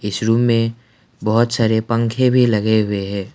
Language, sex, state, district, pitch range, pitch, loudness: Hindi, male, Assam, Kamrup Metropolitan, 110-115 Hz, 115 Hz, -17 LUFS